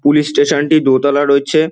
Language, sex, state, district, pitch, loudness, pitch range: Bengali, male, West Bengal, Dakshin Dinajpur, 145 Hz, -12 LUFS, 140-155 Hz